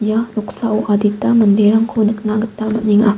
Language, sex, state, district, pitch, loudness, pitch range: Garo, female, Meghalaya, West Garo Hills, 215 Hz, -15 LUFS, 210-225 Hz